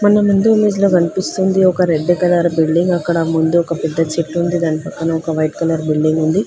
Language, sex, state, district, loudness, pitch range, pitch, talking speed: Telugu, female, Telangana, Hyderabad, -15 LUFS, 160-185 Hz, 170 Hz, 185 wpm